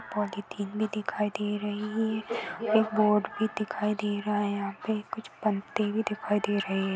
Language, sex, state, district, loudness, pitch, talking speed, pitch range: Hindi, female, Maharashtra, Aurangabad, -30 LUFS, 210 Hz, 190 wpm, 205-215 Hz